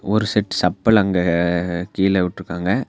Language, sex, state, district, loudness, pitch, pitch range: Tamil, male, Tamil Nadu, Nilgiris, -19 LUFS, 95 Hz, 85-105 Hz